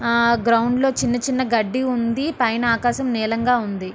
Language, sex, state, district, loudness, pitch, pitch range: Telugu, female, Andhra Pradesh, Srikakulam, -20 LUFS, 240 Hz, 230-255 Hz